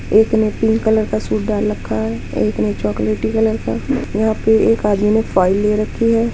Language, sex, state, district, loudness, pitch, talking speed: Hindi, female, Uttar Pradesh, Muzaffarnagar, -17 LUFS, 210 Hz, 220 wpm